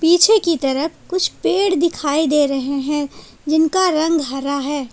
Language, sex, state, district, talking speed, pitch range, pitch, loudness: Hindi, female, Jharkhand, Palamu, 160 wpm, 285-340 Hz, 310 Hz, -17 LUFS